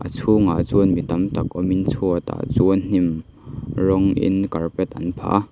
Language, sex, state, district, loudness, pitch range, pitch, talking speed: Mizo, male, Mizoram, Aizawl, -20 LUFS, 90-120 Hz, 95 Hz, 175 wpm